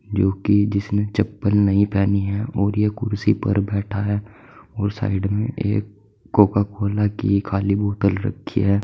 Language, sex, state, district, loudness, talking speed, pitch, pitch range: Hindi, male, Uttar Pradesh, Saharanpur, -21 LUFS, 165 wpm, 100 Hz, 100-105 Hz